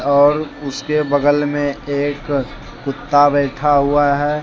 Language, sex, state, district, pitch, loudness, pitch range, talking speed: Hindi, male, Jharkhand, Deoghar, 145 Hz, -16 LUFS, 140-145 Hz, 120 wpm